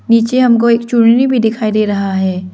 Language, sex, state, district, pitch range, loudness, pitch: Hindi, female, Arunachal Pradesh, Lower Dibang Valley, 205-240 Hz, -12 LUFS, 230 Hz